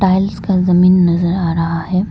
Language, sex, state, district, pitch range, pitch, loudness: Hindi, female, Arunachal Pradesh, Lower Dibang Valley, 170-185 Hz, 180 Hz, -14 LUFS